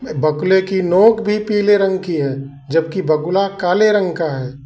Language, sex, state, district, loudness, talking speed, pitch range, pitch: Hindi, male, Uttar Pradesh, Lalitpur, -16 LUFS, 195 wpm, 155-200 Hz, 185 Hz